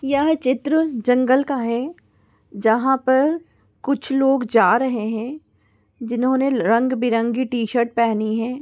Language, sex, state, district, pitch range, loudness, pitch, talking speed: Hindi, female, Maharashtra, Solapur, 235-270 Hz, -19 LUFS, 255 Hz, 125 wpm